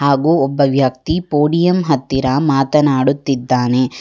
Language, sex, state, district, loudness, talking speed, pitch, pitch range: Kannada, female, Karnataka, Bangalore, -15 LUFS, 90 wpm, 140 Hz, 135-150 Hz